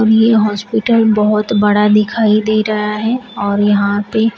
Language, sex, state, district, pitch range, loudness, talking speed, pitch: Hindi, female, Uttar Pradesh, Shamli, 210-220 Hz, -13 LUFS, 150 wpm, 215 Hz